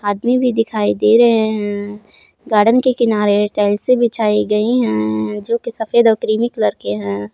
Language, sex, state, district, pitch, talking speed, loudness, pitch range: Hindi, female, Jharkhand, Palamu, 215 Hz, 180 wpm, -15 LUFS, 205-235 Hz